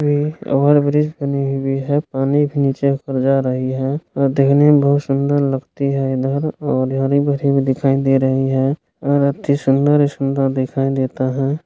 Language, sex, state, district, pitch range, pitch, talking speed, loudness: Hindi, male, Uttar Pradesh, Gorakhpur, 135-145 Hz, 140 Hz, 185 wpm, -17 LUFS